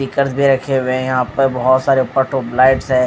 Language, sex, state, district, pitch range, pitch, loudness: Hindi, male, Odisha, Malkangiri, 130-135 Hz, 130 Hz, -15 LUFS